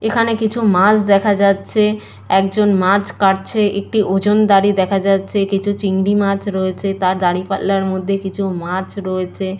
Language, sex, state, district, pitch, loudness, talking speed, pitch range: Bengali, female, West Bengal, Purulia, 195 Hz, -16 LUFS, 145 wpm, 190-205 Hz